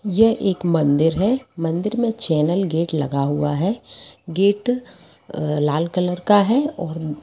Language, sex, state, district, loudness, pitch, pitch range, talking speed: Hindi, female, Jharkhand, Sahebganj, -20 LUFS, 175 Hz, 155-210 Hz, 140 wpm